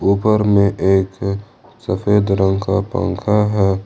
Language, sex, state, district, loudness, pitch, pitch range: Hindi, male, Jharkhand, Ranchi, -16 LUFS, 100 Hz, 95-105 Hz